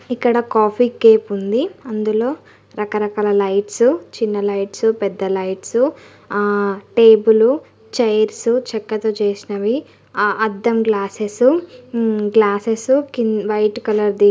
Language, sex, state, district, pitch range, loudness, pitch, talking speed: Telugu, female, Andhra Pradesh, Srikakulam, 205-235 Hz, -17 LUFS, 220 Hz, 100 wpm